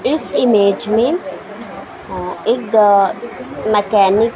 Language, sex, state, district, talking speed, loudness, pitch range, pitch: Hindi, female, Maharashtra, Mumbai Suburban, 80 wpm, -15 LUFS, 200-240 Hz, 220 Hz